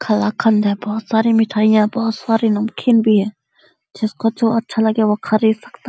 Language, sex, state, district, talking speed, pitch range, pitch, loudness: Hindi, female, Uttar Pradesh, Deoria, 195 wpm, 215-225 Hz, 220 Hz, -16 LUFS